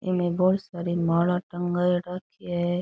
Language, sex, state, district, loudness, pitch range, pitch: Rajasthani, female, Rajasthan, Churu, -25 LUFS, 175-180 Hz, 175 Hz